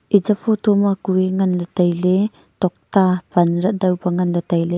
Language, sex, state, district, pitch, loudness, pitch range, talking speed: Wancho, female, Arunachal Pradesh, Longding, 185 Hz, -18 LUFS, 180-200 Hz, 140 wpm